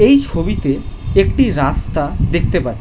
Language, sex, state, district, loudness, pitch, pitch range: Bengali, male, West Bengal, Jhargram, -16 LUFS, 115 Hz, 95-135 Hz